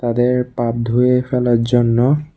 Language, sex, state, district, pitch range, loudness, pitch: Bengali, male, Tripura, West Tripura, 120-125 Hz, -16 LUFS, 125 Hz